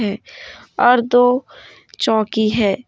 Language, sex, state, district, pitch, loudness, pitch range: Hindi, female, Jharkhand, Deoghar, 220 Hz, -16 LUFS, 215-245 Hz